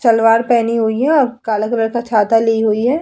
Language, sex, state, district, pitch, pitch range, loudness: Hindi, female, Uttar Pradesh, Hamirpur, 230 Hz, 225-240 Hz, -14 LUFS